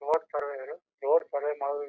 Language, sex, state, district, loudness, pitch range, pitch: Kannada, male, Karnataka, Chamarajanagar, -30 LUFS, 140-150 Hz, 145 Hz